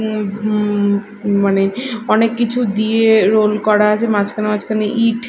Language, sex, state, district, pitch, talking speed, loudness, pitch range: Bengali, female, Odisha, Malkangiri, 215 Hz, 145 wpm, -15 LUFS, 205-225 Hz